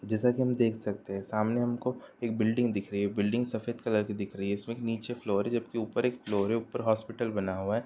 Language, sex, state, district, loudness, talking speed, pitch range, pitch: Hindi, male, Bihar, Sitamarhi, -31 LUFS, 275 wpm, 105-120 Hz, 110 Hz